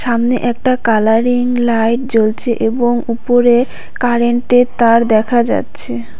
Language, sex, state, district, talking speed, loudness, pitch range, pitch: Bengali, female, West Bengal, Cooch Behar, 105 wpm, -13 LUFS, 225-245 Hz, 240 Hz